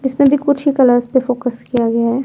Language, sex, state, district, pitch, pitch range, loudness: Hindi, female, Himachal Pradesh, Shimla, 255 Hz, 245-280 Hz, -15 LUFS